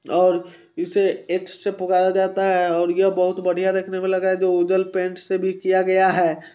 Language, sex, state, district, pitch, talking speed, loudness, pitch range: Hindi, male, Bihar, Sitamarhi, 185 Hz, 210 wpm, -20 LUFS, 180-190 Hz